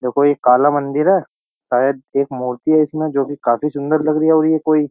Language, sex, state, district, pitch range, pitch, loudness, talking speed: Hindi, male, Uttar Pradesh, Jyotiba Phule Nagar, 135-155 Hz, 145 Hz, -16 LUFS, 255 wpm